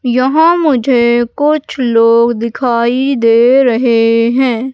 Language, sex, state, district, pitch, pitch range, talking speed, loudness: Hindi, female, Madhya Pradesh, Katni, 245 Hz, 235-265 Hz, 100 wpm, -11 LUFS